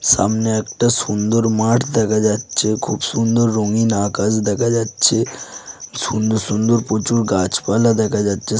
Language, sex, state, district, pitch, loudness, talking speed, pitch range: Bengali, male, West Bengal, Jhargram, 110 Hz, -17 LUFS, 130 wpm, 105-115 Hz